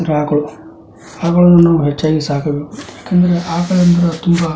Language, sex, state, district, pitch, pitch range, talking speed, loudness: Kannada, male, Karnataka, Dharwad, 170 Hz, 150-175 Hz, 130 wpm, -13 LUFS